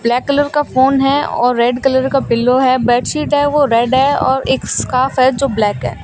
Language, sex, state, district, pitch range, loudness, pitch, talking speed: Hindi, female, Rajasthan, Bikaner, 245-275 Hz, -14 LUFS, 260 Hz, 240 wpm